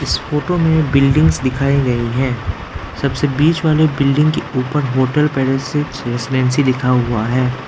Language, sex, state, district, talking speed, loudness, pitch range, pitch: Hindi, male, Arunachal Pradesh, Lower Dibang Valley, 135 wpm, -16 LUFS, 125-150 Hz, 135 Hz